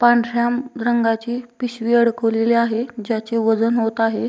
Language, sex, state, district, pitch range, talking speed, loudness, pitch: Marathi, female, Maharashtra, Dhule, 225-240 Hz, 140 wpm, -19 LUFS, 235 Hz